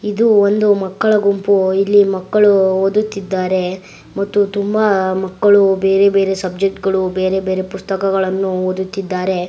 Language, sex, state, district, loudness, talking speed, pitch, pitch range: Kannada, female, Karnataka, Gulbarga, -15 LUFS, 115 wpm, 195 Hz, 190-200 Hz